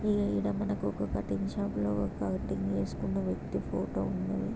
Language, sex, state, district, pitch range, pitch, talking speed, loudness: Telugu, female, Andhra Pradesh, Krishna, 95-100 Hz, 100 Hz, 170 wpm, -33 LUFS